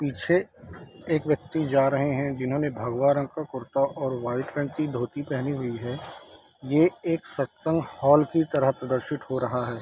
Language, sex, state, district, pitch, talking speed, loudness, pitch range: Hindi, male, Bihar, East Champaran, 140 Hz, 175 wpm, -26 LUFS, 130-150 Hz